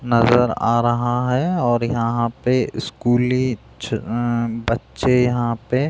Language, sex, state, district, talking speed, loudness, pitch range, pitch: Hindi, male, Bihar, Jahanabad, 130 wpm, -20 LUFS, 115-125 Hz, 120 Hz